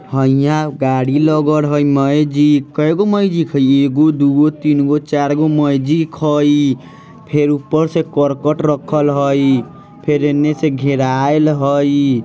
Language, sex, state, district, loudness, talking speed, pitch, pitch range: Bajjika, male, Bihar, Vaishali, -14 LUFS, 120 wpm, 145 Hz, 140-150 Hz